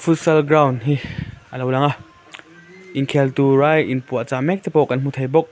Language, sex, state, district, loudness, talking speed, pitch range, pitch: Mizo, male, Mizoram, Aizawl, -18 LUFS, 185 wpm, 130-160 Hz, 145 Hz